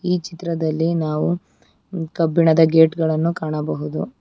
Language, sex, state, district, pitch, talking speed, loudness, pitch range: Kannada, female, Karnataka, Bangalore, 160 Hz, 100 wpm, -19 LUFS, 155-170 Hz